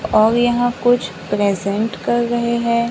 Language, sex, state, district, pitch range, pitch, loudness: Hindi, female, Maharashtra, Gondia, 215-240 Hz, 235 Hz, -17 LUFS